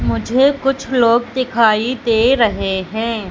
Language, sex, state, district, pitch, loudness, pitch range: Hindi, female, Madhya Pradesh, Katni, 230 Hz, -15 LUFS, 215-255 Hz